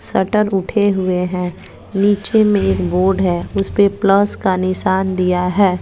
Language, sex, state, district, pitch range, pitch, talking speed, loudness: Hindi, female, Bihar, West Champaran, 180-200 Hz, 190 Hz, 155 wpm, -16 LUFS